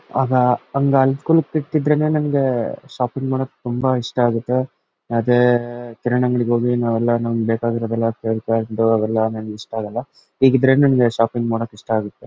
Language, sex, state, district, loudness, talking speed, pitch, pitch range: Kannada, male, Karnataka, Bellary, -19 LUFS, 120 wpm, 120 Hz, 115-130 Hz